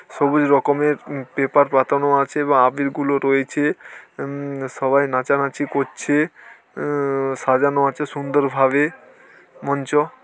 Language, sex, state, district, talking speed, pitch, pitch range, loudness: Bengali, male, West Bengal, Paschim Medinipur, 105 wpm, 140 Hz, 135-145 Hz, -19 LUFS